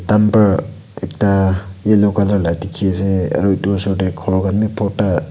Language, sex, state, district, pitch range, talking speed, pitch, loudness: Nagamese, male, Nagaland, Kohima, 95-105 Hz, 145 wpm, 100 Hz, -16 LUFS